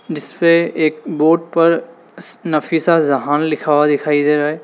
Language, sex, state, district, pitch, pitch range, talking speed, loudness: Hindi, male, Uttar Pradesh, Lalitpur, 155 Hz, 150-165 Hz, 170 wpm, -15 LUFS